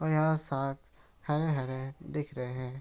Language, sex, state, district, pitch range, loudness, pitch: Hindi, male, Bihar, Araria, 130-155 Hz, -33 LUFS, 140 Hz